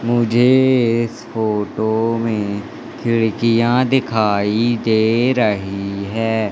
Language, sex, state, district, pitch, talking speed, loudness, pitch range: Hindi, male, Madhya Pradesh, Katni, 115 Hz, 85 wpm, -17 LUFS, 110-120 Hz